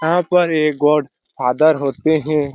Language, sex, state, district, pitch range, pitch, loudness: Hindi, male, Bihar, Lakhisarai, 145-160 Hz, 150 Hz, -16 LUFS